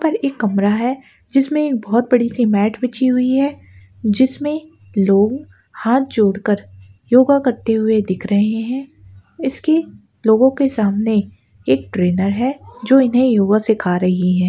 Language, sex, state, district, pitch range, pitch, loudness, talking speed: Hindi, female, Jharkhand, Sahebganj, 200-260 Hz, 220 Hz, -17 LUFS, 150 wpm